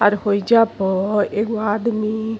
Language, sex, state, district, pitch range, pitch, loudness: Bhojpuri, female, Uttar Pradesh, Gorakhpur, 205-220 Hz, 215 Hz, -19 LUFS